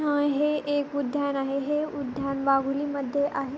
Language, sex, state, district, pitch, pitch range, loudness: Marathi, female, Maharashtra, Pune, 285 Hz, 275-290 Hz, -27 LUFS